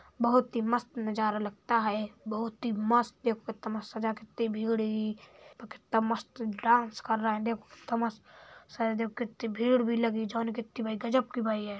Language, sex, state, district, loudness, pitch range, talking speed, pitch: Hindi, male, Uttar Pradesh, Hamirpur, -31 LUFS, 220-235 Hz, 95 wpm, 230 Hz